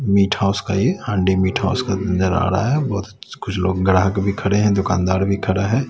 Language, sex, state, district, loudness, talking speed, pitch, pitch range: Hindi, male, Bihar, West Champaran, -19 LUFS, 235 wpm, 100 Hz, 95-105 Hz